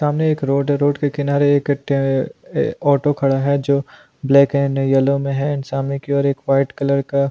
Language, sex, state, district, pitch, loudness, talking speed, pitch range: Hindi, male, Goa, North and South Goa, 140 Hz, -18 LUFS, 215 wpm, 135-145 Hz